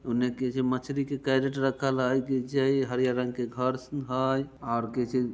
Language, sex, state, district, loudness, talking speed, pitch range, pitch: Hindi, male, Bihar, Muzaffarpur, -28 LUFS, 170 wpm, 125-135 Hz, 130 Hz